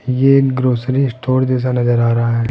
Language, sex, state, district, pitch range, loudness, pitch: Hindi, male, Rajasthan, Jaipur, 120-130 Hz, -15 LUFS, 130 Hz